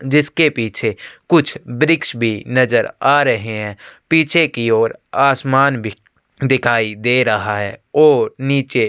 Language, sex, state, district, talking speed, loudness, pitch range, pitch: Hindi, male, Chhattisgarh, Sukma, 135 wpm, -16 LUFS, 110-145 Hz, 125 Hz